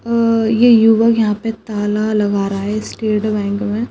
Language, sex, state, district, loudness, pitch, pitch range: Chhattisgarhi, female, Chhattisgarh, Rajnandgaon, -15 LUFS, 215 Hz, 210-225 Hz